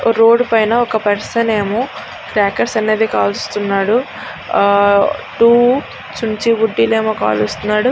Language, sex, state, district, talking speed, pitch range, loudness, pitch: Telugu, female, Andhra Pradesh, Srikakulam, 105 wpm, 205-230 Hz, -14 LUFS, 220 Hz